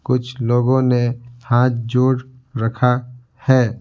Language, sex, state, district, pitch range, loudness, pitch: Hindi, male, Bihar, Patna, 120-125 Hz, -18 LUFS, 125 Hz